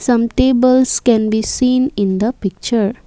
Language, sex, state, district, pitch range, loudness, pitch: English, female, Assam, Kamrup Metropolitan, 215-255 Hz, -15 LUFS, 235 Hz